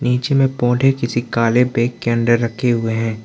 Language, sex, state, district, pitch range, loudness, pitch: Hindi, male, Arunachal Pradesh, Lower Dibang Valley, 115-125 Hz, -17 LUFS, 120 Hz